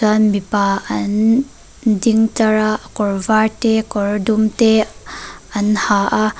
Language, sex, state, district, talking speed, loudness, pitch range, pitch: Mizo, female, Mizoram, Aizawl, 140 wpm, -16 LUFS, 205-220 Hz, 215 Hz